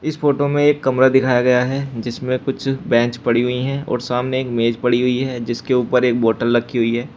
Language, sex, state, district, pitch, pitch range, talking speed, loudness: Hindi, male, Uttar Pradesh, Shamli, 125 Hz, 120-130 Hz, 235 wpm, -18 LUFS